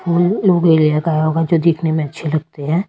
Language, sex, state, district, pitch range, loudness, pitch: Hindi, female, Delhi, New Delhi, 155-170 Hz, -16 LUFS, 165 Hz